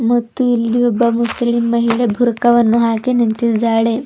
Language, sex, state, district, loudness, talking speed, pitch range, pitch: Kannada, female, Karnataka, Bidar, -15 LUFS, 120 wpm, 230-240 Hz, 235 Hz